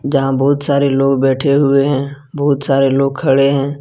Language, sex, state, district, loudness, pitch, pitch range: Hindi, male, Jharkhand, Ranchi, -14 LUFS, 140 Hz, 135-140 Hz